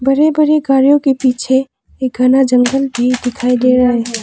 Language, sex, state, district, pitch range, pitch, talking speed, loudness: Hindi, female, Arunachal Pradesh, Papum Pare, 250-270 Hz, 260 Hz, 185 wpm, -13 LUFS